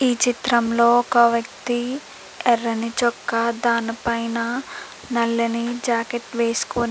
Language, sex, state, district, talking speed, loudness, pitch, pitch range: Telugu, female, Andhra Pradesh, Chittoor, 105 wpm, -21 LUFS, 235 Hz, 230-240 Hz